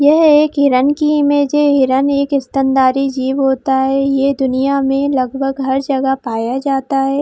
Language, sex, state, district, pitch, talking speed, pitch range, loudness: Hindi, female, Jharkhand, Jamtara, 270 Hz, 175 wpm, 265-280 Hz, -14 LUFS